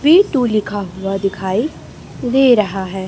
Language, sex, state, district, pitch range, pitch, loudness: Hindi, male, Chhattisgarh, Raipur, 195-250 Hz, 205 Hz, -16 LUFS